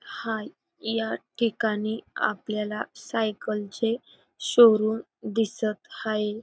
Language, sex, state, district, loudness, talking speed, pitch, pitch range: Marathi, female, Maharashtra, Dhule, -26 LUFS, 75 wpm, 220 Hz, 215-225 Hz